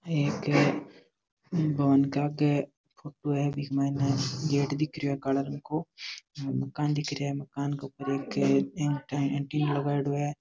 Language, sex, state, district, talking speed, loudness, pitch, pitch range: Marwari, male, Rajasthan, Nagaur, 145 wpm, -29 LUFS, 140 Hz, 140-145 Hz